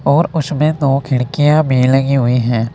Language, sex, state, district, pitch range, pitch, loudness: Hindi, male, Uttar Pradesh, Saharanpur, 125-150 Hz, 135 Hz, -14 LUFS